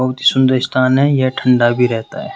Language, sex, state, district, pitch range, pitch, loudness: Hindi, male, Rajasthan, Jaipur, 125-130 Hz, 130 Hz, -14 LUFS